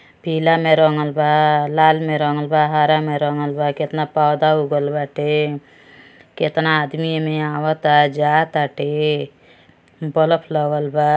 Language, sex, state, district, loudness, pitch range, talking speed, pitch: Bhojpuri, male, Uttar Pradesh, Gorakhpur, -17 LUFS, 150-155 Hz, 135 wpm, 150 Hz